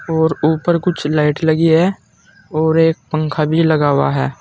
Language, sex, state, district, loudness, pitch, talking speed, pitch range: Hindi, male, Uttar Pradesh, Saharanpur, -15 LUFS, 160 Hz, 175 wpm, 150-165 Hz